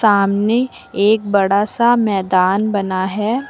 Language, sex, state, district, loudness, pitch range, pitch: Hindi, female, Uttar Pradesh, Lucknow, -16 LUFS, 195-220 Hz, 205 Hz